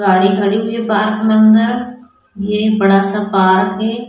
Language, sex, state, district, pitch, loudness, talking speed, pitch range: Hindi, female, Goa, North and South Goa, 215 Hz, -13 LUFS, 175 wpm, 195-225 Hz